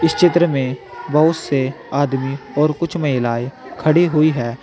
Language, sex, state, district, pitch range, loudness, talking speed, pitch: Hindi, male, Uttar Pradesh, Saharanpur, 130-160 Hz, -17 LUFS, 155 wpm, 145 Hz